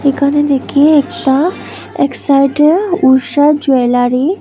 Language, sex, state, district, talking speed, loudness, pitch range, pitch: Bengali, female, Tripura, West Tripura, 110 wpm, -11 LUFS, 265-300 Hz, 280 Hz